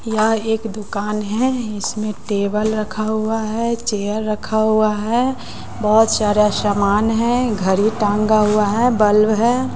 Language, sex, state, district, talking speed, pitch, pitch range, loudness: Hindi, female, Bihar, West Champaran, 140 wpm, 215 Hz, 210-225 Hz, -18 LUFS